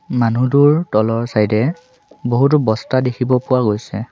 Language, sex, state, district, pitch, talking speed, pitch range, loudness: Assamese, male, Assam, Sonitpur, 125 Hz, 130 wpm, 115-140 Hz, -16 LUFS